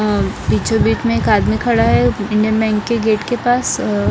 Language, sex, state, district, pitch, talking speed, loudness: Hindi, female, Bihar, Patna, 215 Hz, 205 wpm, -15 LUFS